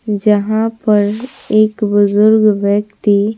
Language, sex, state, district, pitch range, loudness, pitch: Hindi, female, Bihar, Patna, 205-215 Hz, -13 LUFS, 210 Hz